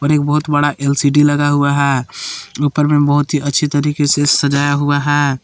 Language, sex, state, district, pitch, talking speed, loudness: Hindi, male, Jharkhand, Palamu, 145 Hz, 190 wpm, -14 LUFS